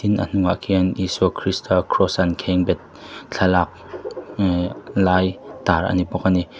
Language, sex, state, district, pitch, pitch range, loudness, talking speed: Mizo, male, Mizoram, Aizawl, 95 Hz, 90-95 Hz, -20 LUFS, 155 wpm